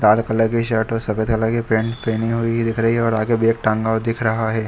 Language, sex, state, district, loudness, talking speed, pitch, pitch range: Hindi, male, Jharkhand, Sahebganj, -19 LUFS, 280 wpm, 115 Hz, 110-115 Hz